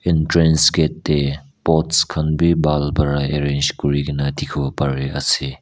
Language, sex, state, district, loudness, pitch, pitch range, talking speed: Nagamese, male, Nagaland, Kohima, -18 LUFS, 75 Hz, 70-80 Hz, 160 wpm